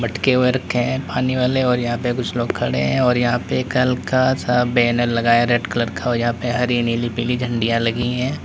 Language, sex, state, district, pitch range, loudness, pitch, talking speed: Hindi, male, Uttar Pradesh, Lalitpur, 120-125 Hz, -19 LUFS, 120 Hz, 225 wpm